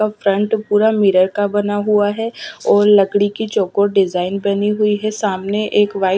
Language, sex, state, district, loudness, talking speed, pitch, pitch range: Hindi, female, Punjab, Fazilka, -16 LUFS, 185 wpm, 205 Hz, 200-210 Hz